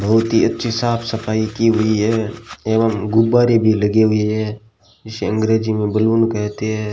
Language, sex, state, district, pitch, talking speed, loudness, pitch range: Hindi, male, Rajasthan, Bikaner, 110 Hz, 175 wpm, -17 LUFS, 110-115 Hz